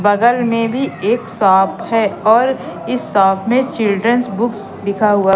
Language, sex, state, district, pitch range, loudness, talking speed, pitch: Hindi, female, Madhya Pradesh, Katni, 200-235 Hz, -15 LUFS, 155 wpm, 220 Hz